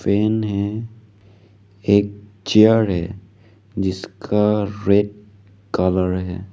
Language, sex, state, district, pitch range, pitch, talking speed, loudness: Hindi, male, Arunachal Pradesh, Lower Dibang Valley, 100-105 Hz, 100 Hz, 85 wpm, -19 LUFS